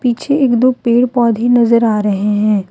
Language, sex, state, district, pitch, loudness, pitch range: Hindi, female, Jharkhand, Deoghar, 235 Hz, -13 LUFS, 215-245 Hz